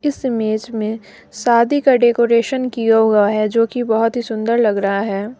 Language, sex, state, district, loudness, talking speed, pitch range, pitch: Hindi, female, Jharkhand, Deoghar, -16 LUFS, 190 wpm, 215-240 Hz, 230 Hz